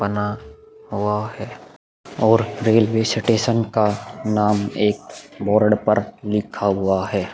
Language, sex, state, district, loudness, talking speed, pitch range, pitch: Hindi, male, Uttar Pradesh, Muzaffarnagar, -20 LUFS, 115 wpm, 105-110 Hz, 105 Hz